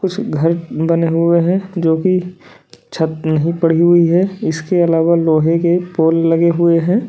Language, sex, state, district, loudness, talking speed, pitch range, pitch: Hindi, male, Uttar Pradesh, Lalitpur, -14 LUFS, 160 wpm, 165-180 Hz, 170 Hz